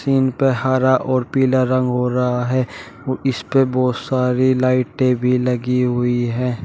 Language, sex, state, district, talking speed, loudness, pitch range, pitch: Hindi, male, Uttar Pradesh, Shamli, 170 wpm, -18 LUFS, 125-130 Hz, 130 Hz